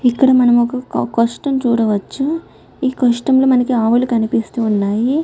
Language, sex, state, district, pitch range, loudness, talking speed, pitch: Telugu, female, Telangana, Karimnagar, 230-260 Hz, -15 LUFS, 115 wpm, 245 Hz